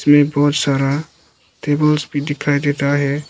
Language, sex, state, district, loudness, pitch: Hindi, male, Arunachal Pradesh, Lower Dibang Valley, -17 LUFS, 145 Hz